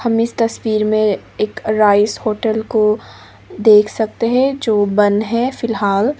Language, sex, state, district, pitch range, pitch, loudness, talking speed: Hindi, female, Nagaland, Dimapur, 210-230 Hz, 215 Hz, -15 LUFS, 145 wpm